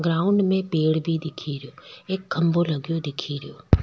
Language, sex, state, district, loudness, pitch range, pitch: Rajasthani, female, Rajasthan, Nagaur, -24 LUFS, 155-175 Hz, 165 Hz